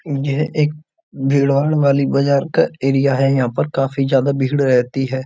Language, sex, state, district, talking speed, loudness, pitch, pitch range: Hindi, male, Uttar Pradesh, Budaun, 170 wpm, -17 LUFS, 140 Hz, 135-140 Hz